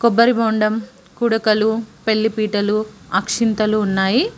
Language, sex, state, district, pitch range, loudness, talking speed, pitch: Telugu, female, Telangana, Mahabubabad, 215-225 Hz, -18 LUFS, 95 wpm, 220 Hz